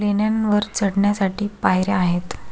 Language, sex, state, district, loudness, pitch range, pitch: Marathi, female, Maharashtra, Solapur, -20 LUFS, 185-210 Hz, 205 Hz